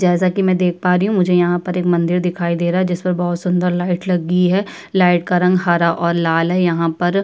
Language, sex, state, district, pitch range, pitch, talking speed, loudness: Hindi, female, Uttar Pradesh, Budaun, 175-180 Hz, 180 Hz, 265 wpm, -16 LUFS